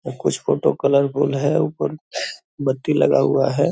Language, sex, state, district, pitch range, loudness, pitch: Hindi, male, Bihar, Purnia, 135-145 Hz, -20 LUFS, 140 Hz